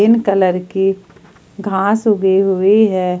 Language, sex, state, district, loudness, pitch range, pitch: Hindi, female, Jharkhand, Ranchi, -14 LUFS, 190-205 Hz, 195 Hz